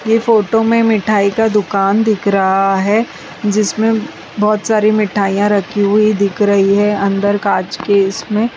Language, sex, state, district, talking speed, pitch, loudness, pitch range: Hindi, female, Bihar, West Champaran, 155 wpm, 205 Hz, -13 LUFS, 200-220 Hz